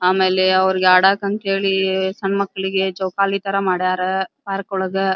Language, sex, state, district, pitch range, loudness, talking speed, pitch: Kannada, female, Karnataka, Belgaum, 185-195 Hz, -18 LUFS, 115 wpm, 190 Hz